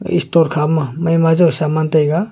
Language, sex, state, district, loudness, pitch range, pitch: Wancho, male, Arunachal Pradesh, Longding, -15 LUFS, 155-170 Hz, 160 Hz